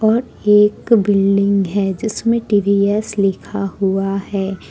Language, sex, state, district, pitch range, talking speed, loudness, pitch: Hindi, female, Jharkhand, Ranchi, 195-210 Hz, 115 wpm, -16 LUFS, 200 Hz